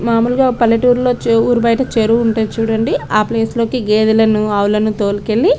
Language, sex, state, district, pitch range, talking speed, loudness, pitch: Telugu, female, Telangana, Karimnagar, 215-235 Hz, 160 wpm, -14 LUFS, 225 Hz